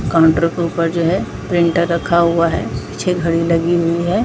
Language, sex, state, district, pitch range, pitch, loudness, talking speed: Hindi, female, Jharkhand, Jamtara, 165-170 Hz, 170 Hz, -16 LUFS, 200 wpm